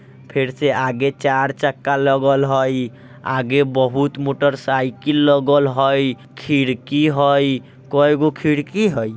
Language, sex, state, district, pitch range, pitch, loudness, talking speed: Bajjika, male, Bihar, Vaishali, 130-145 Hz, 135 Hz, -18 LUFS, 125 wpm